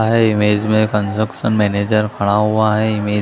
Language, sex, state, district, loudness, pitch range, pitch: Hindi, male, Chhattisgarh, Bilaspur, -16 LUFS, 105-110 Hz, 105 Hz